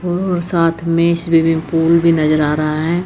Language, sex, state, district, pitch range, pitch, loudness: Hindi, female, Chandigarh, Chandigarh, 160-170 Hz, 165 Hz, -15 LUFS